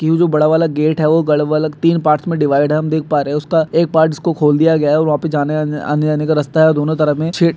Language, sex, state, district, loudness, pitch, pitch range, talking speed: Hindi, male, Maharashtra, Dhule, -14 LUFS, 155 Hz, 150-160 Hz, 300 wpm